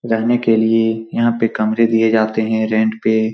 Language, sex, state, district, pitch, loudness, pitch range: Hindi, male, Bihar, Supaul, 110 Hz, -16 LUFS, 110-115 Hz